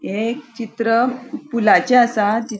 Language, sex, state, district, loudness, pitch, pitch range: Konkani, female, Goa, North and South Goa, -17 LUFS, 235 Hz, 220-250 Hz